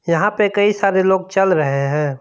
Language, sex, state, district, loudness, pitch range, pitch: Hindi, male, Jharkhand, Palamu, -16 LUFS, 150-205 Hz, 190 Hz